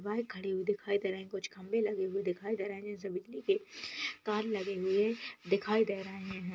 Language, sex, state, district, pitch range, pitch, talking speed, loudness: Hindi, female, Rajasthan, Churu, 195-220 Hz, 200 Hz, 230 wpm, -35 LUFS